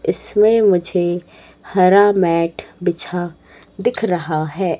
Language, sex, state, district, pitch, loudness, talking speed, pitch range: Hindi, female, Madhya Pradesh, Katni, 180 Hz, -17 LUFS, 100 wpm, 175-205 Hz